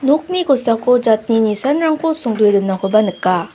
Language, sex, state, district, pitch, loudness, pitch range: Garo, female, Meghalaya, South Garo Hills, 230 Hz, -15 LUFS, 210-285 Hz